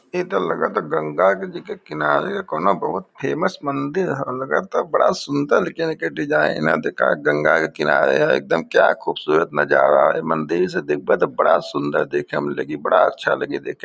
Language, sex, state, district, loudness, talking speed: Bhojpuri, male, Uttar Pradesh, Varanasi, -19 LUFS, 195 wpm